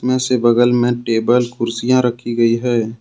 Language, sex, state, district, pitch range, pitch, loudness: Hindi, male, Jharkhand, Deoghar, 115-125 Hz, 120 Hz, -16 LUFS